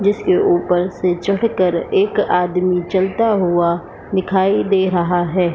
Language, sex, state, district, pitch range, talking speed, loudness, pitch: Hindi, female, Bihar, Supaul, 180-200 Hz, 130 wpm, -17 LUFS, 185 Hz